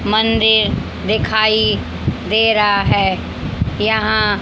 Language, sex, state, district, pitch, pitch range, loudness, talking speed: Hindi, female, Haryana, Charkhi Dadri, 215 Hz, 205-220 Hz, -15 LUFS, 80 wpm